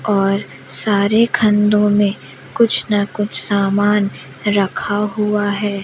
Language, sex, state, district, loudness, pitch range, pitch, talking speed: Hindi, female, Madhya Pradesh, Umaria, -16 LUFS, 200-210 Hz, 205 Hz, 115 wpm